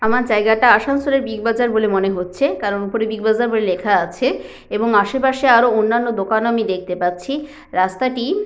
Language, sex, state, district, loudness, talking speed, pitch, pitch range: Bengali, female, West Bengal, Purulia, -17 LUFS, 185 wpm, 225 Hz, 200-245 Hz